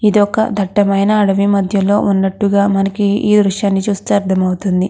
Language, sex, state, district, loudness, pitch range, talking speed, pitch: Telugu, female, Andhra Pradesh, Krishna, -14 LUFS, 195-205 Hz, 135 wpm, 200 Hz